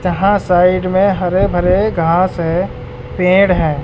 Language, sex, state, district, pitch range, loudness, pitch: Hindi, male, Bihar, West Champaran, 170-190 Hz, -14 LUFS, 180 Hz